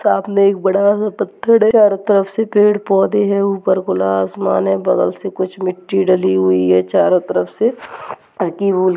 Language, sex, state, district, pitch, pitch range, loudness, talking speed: Hindi, female, Uttarakhand, Tehri Garhwal, 195 Hz, 185-205 Hz, -15 LUFS, 180 wpm